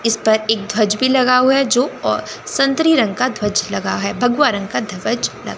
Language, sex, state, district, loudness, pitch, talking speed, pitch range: Hindi, female, Chandigarh, Chandigarh, -16 LUFS, 245 Hz, 215 wpm, 220-265 Hz